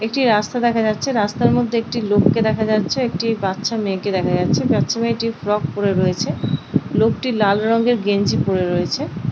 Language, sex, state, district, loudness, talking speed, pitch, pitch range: Bengali, female, West Bengal, Paschim Medinipur, -18 LUFS, 165 wpm, 210 Hz, 185-230 Hz